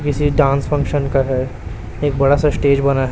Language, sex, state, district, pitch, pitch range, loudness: Hindi, male, Chhattisgarh, Raipur, 140 Hz, 130-145 Hz, -17 LUFS